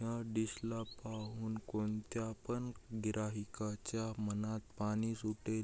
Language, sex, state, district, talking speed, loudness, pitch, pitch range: Marathi, male, Maharashtra, Aurangabad, 105 wpm, -41 LUFS, 110 Hz, 105-115 Hz